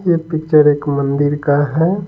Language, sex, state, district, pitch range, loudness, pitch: Hindi, male, Bihar, Patna, 145-165 Hz, -15 LUFS, 150 Hz